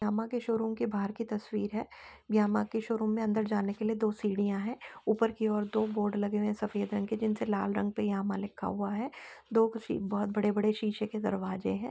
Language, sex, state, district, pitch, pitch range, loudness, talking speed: Hindi, female, Uttar Pradesh, Etah, 215 Hz, 205-225 Hz, -32 LUFS, 245 wpm